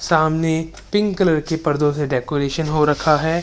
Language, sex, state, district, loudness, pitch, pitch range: Hindi, male, Bihar, Darbhanga, -19 LUFS, 155 Hz, 150-160 Hz